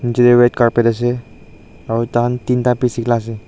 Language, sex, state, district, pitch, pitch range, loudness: Nagamese, male, Nagaland, Dimapur, 120 Hz, 115-120 Hz, -15 LUFS